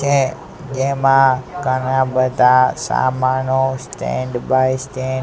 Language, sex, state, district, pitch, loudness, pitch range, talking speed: Gujarati, male, Gujarat, Gandhinagar, 130 Hz, -17 LUFS, 130-135 Hz, 90 wpm